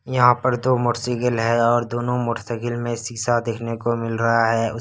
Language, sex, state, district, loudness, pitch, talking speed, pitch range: Hindi, male, Bihar, Kishanganj, -21 LUFS, 120 Hz, 210 wpm, 115-120 Hz